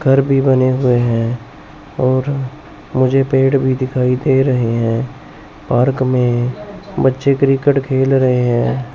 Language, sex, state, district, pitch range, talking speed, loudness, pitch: Hindi, male, Chandigarh, Chandigarh, 125-135 Hz, 135 wpm, -15 LUFS, 130 Hz